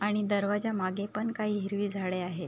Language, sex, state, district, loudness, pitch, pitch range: Marathi, female, Maharashtra, Sindhudurg, -31 LUFS, 205 Hz, 190-210 Hz